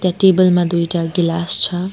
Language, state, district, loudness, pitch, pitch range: Nepali, West Bengal, Darjeeling, -15 LUFS, 175 Hz, 170-185 Hz